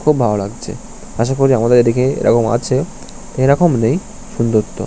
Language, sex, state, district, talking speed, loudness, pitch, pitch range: Bengali, male, West Bengal, North 24 Parganas, 160 wpm, -15 LUFS, 125 Hz, 115-145 Hz